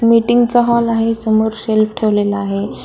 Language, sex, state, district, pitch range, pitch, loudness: Marathi, female, Maharashtra, Solapur, 215-230 Hz, 225 Hz, -14 LUFS